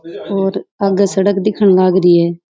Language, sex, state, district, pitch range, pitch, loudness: Rajasthani, female, Rajasthan, Churu, 185-200 Hz, 195 Hz, -13 LUFS